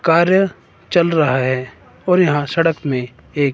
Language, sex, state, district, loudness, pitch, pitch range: Hindi, male, Himachal Pradesh, Shimla, -17 LUFS, 150 Hz, 130-170 Hz